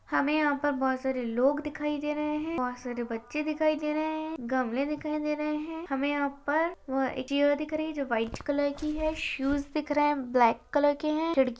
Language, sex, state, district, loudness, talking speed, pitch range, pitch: Hindi, female, Chhattisgarh, Balrampur, -29 LUFS, 235 wpm, 265-305 Hz, 290 Hz